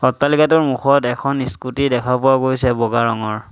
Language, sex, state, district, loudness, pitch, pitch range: Assamese, male, Assam, Sonitpur, -16 LUFS, 130 Hz, 120-140 Hz